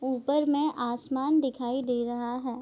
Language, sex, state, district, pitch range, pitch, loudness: Hindi, female, Bihar, Darbhanga, 245-285 Hz, 255 Hz, -28 LUFS